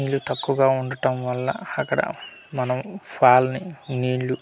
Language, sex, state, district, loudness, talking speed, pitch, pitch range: Telugu, male, Andhra Pradesh, Manyam, -23 LUFS, 120 wpm, 130 Hz, 125-135 Hz